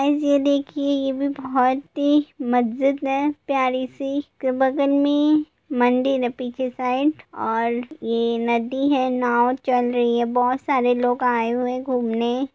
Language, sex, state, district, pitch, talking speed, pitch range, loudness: Hindi, female, Bihar, Gopalganj, 260 Hz, 155 wpm, 245-280 Hz, -21 LUFS